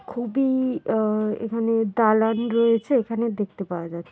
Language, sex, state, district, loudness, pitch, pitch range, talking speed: Bengali, female, West Bengal, Jhargram, -23 LUFS, 225 Hz, 215-235 Hz, 145 wpm